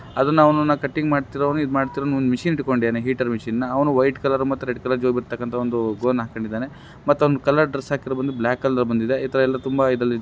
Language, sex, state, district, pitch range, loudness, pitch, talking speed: Kannada, male, Karnataka, Raichur, 125-140 Hz, -21 LUFS, 130 Hz, 205 wpm